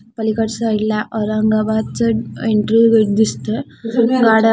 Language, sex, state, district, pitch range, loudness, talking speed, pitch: Marathi, female, Maharashtra, Aurangabad, 215-225 Hz, -16 LUFS, 95 wpm, 220 Hz